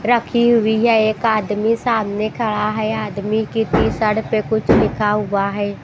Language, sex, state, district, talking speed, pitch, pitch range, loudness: Hindi, female, Bihar, Katihar, 175 wpm, 215 Hz, 210-225 Hz, -17 LUFS